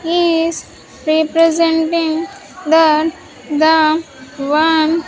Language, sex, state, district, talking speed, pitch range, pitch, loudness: English, female, Andhra Pradesh, Sri Satya Sai, 70 wpm, 310-330 Hz, 320 Hz, -14 LUFS